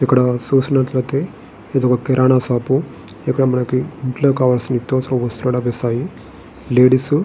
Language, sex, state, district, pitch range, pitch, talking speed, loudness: Telugu, male, Andhra Pradesh, Srikakulam, 125-135 Hz, 130 Hz, 125 wpm, -17 LUFS